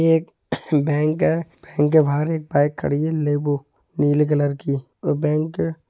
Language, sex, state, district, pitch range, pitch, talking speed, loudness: Hindi, male, Uttar Pradesh, Etah, 145-160 Hz, 150 Hz, 185 wpm, -21 LUFS